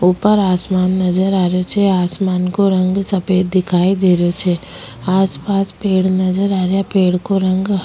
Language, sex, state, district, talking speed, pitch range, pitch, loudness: Rajasthani, female, Rajasthan, Nagaur, 175 wpm, 180-195 Hz, 185 Hz, -15 LUFS